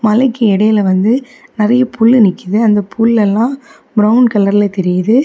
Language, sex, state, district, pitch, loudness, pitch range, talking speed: Tamil, female, Tamil Nadu, Kanyakumari, 215 Hz, -12 LUFS, 205-245 Hz, 135 wpm